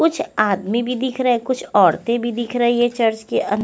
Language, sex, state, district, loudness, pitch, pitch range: Hindi, female, Chandigarh, Chandigarh, -19 LUFS, 240 Hz, 225-245 Hz